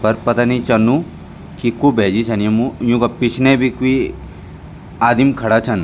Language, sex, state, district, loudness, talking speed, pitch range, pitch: Garhwali, male, Uttarakhand, Tehri Garhwal, -15 LUFS, 165 wpm, 115-130 Hz, 120 Hz